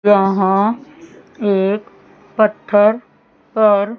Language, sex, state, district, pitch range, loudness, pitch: Hindi, female, Chandigarh, Chandigarh, 200-220 Hz, -15 LUFS, 205 Hz